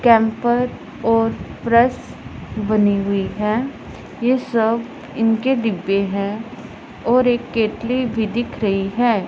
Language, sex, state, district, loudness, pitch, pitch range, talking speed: Hindi, female, Punjab, Pathankot, -19 LUFS, 225 Hz, 210-240 Hz, 115 wpm